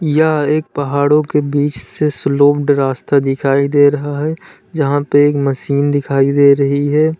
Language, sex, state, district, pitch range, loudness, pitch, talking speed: Hindi, male, Uttar Pradesh, Lalitpur, 140-150 Hz, -14 LUFS, 145 Hz, 165 wpm